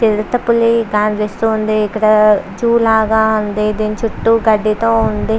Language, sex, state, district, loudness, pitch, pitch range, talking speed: Telugu, female, Andhra Pradesh, Visakhapatnam, -14 LUFS, 215 Hz, 210-225 Hz, 120 wpm